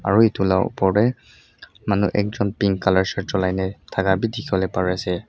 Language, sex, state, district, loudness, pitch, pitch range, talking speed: Nagamese, male, Mizoram, Aizawl, -21 LUFS, 95 Hz, 95-105 Hz, 205 wpm